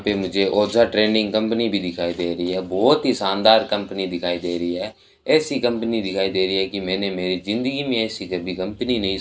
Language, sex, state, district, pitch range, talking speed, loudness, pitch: Hindi, male, Rajasthan, Bikaner, 90-110 Hz, 230 wpm, -21 LUFS, 100 Hz